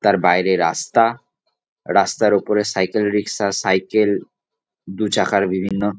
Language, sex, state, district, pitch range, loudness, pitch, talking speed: Bengali, male, West Bengal, Jalpaiguri, 95-105 Hz, -18 LUFS, 100 Hz, 110 wpm